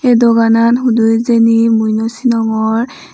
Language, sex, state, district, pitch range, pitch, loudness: Chakma, female, Tripura, Unakoti, 225-235 Hz, 230 Hz, -12 LUFS